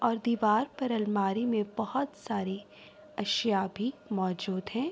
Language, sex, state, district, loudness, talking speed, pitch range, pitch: Urdu, female, Andhra Pradesh, Anantapur, -31 LUFS, 135 wpm, 200-240 Hz, 220 Hz